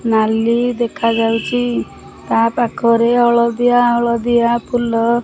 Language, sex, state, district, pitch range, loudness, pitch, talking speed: Odia, male, Odisha, Khordha, 230-240 Hz, -15 LUFS, 235 Hz, 70 wpm